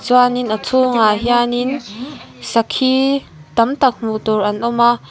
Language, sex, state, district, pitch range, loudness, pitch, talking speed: Mizo, female, Mizoram, Aizawl, 220-260 Hz, -16 LUFS, 240 Hz, 140 wpm